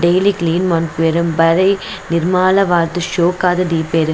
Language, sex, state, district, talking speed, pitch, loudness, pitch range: Tulu, female, Karnataka, Dakshina Kannada, 100 wpm, 175 Hz, -15 LUFS, 165-185 Hz